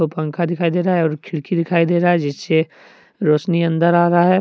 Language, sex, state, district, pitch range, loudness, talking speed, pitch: Hindi, male, Jharkhand, Deoghar, 160-175 Hz, -17 LUFS, 245 wpm, 170 Hz